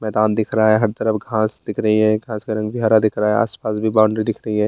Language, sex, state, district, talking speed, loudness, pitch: Hindi, male, Bihar, Bhagalpur, 305 wpm, -18 LUFS, 110 Hz